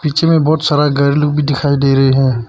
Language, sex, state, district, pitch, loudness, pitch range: Hindi, male, Arunachal Pradesh, Papum Pare, 145 Hz, -13 LUFS, 140-150 Hz